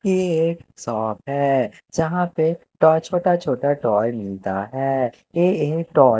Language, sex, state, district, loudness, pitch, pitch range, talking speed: Hindi, male, Himachal Pradesh, Shimla, -21 LUFS, 145 Hz, 125-170 Hz, 145 wpm